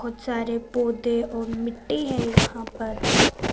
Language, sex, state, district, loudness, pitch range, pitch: Hindi, female, Punjab, Fazilka, -24 LUFS, 230-235 Hz, 235 Hz